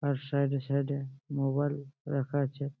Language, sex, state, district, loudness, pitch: Bengali, male, West Bengal, Malda, -32 LUFS, 140 Hz